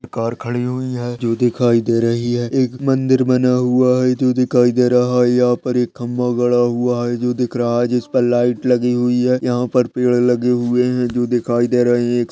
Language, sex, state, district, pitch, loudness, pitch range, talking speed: Hindi, male, Uttar Pradesh, Jyotiba Phule Nagar, 125 Hz, -16 LUFS, 120-125 Hz, 230 wpm